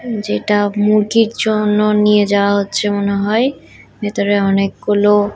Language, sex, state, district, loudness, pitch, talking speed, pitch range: Bengali, female, Odisha, Khordha, -15 LUFS, 205 Hz, 110 wpm, 200-210 Hz